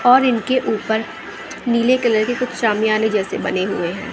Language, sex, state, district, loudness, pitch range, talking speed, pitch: Hindi, female, Bihar, West Champaran, -18 LUFS, 215-255 Hz, 160 wpm, 235 Hz